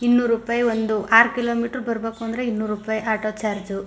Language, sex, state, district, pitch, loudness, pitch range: Kannada, female, Karnataka, Mysore, 225 Hz, -21 LUFS, 215-235 Hz